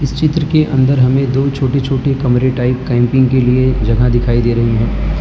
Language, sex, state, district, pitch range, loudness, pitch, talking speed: Hindi, male, Gujarat, Valsad, 125-135 Hz, -13 LUFS, 130 Hz, 195 wpm